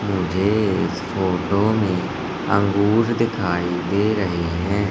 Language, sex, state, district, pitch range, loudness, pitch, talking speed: Hindi, male, Madhya Pradesh, Katni, 90-105 Hz, -20 LUFS, 100 Hz, 110 wpm